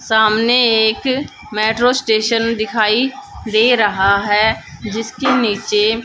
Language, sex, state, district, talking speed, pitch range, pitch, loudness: Hindi, female, Haryana, Jhajjar, 100 wpm, 215-240 Hz, 220 Hz, -15 LUFS